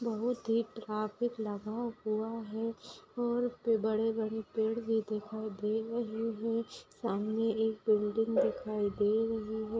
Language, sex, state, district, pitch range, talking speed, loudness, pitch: Hindi, female, Maharashtra, Aurangabad, 215-230 Hz, 135 wpm, -34 LUFS, 220 Hz